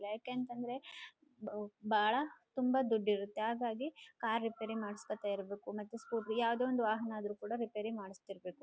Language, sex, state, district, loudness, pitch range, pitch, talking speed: Kannada, female, Karnataka, Chamarajanagar, -38 LUFS, 210-250 Hz, 225 Hz, 130 wpm